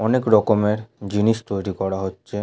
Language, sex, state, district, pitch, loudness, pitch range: Bengali, male, West Bengal, Purulia, 105 Hz, -21 LUFS, 100-110 Hz